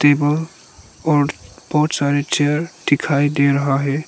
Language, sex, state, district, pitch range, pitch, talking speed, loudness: Hindi, male, Arunachal Pradesh, Lower Dibang Valley, 140-150 Hz, 145 Hz, 130 wpm, -18 LUFS